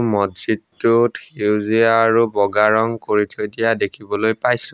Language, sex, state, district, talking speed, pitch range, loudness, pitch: Assamese, male, Assam, Sonitpur, 125 wpm, 105-115 Hz, -18 LUFS, 110 Hz